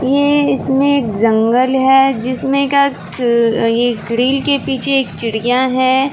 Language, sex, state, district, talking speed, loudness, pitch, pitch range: Hindi, female, Uttar Pradesh, Varanasi, 135 wpm, -14 LUFS, 260 Hz, 235-275 Hz